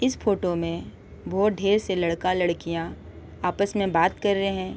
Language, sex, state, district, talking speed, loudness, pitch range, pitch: Hindi, female, Jharkhand, Sahebganj, 175 wpm, -25 LUFS, 170-200 Hz, 185 Hz